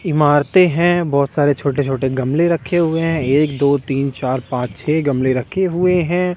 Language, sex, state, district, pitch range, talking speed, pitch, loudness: Hindi, male, Delhi, New Delhi, 135-170 Hz, 180 wpm, 145 Hz, -16 LUFS